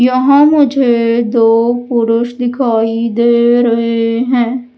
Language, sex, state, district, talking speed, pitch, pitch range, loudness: Hindi, male, Madhya Pradesh, Umaria, 100 wpm, 235 Hz, 230-250 Hz, -11 LUFS